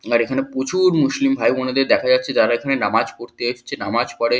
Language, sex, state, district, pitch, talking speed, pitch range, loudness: Bengali, male, West Bengal, Kolkata, 130 Hz, 190 wpm, 120-160 Hz, -19 LUFS